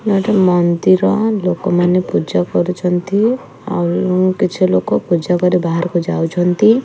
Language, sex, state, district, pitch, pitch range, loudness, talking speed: Odia, female, Odisha, Khordha, 180 Hz, 175-190 Hz, -15 LUFS, 125 wpm